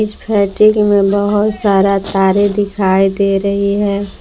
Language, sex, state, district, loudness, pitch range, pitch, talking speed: Hindi, female, Jharkhand, Palamu, -13 LUFS, 195-205 Hz, 200 Hz, 140 wpm